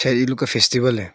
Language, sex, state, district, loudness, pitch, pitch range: Hindi, male, Arunachal Pradesh, Longding, -18 LUFS, 125 Hz, 115-130 Hz